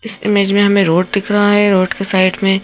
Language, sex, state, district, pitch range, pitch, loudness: Hindi, female, Madhya Pradesh, Bhopal, 195-205 Hz, 200 Hz, -13 LUFS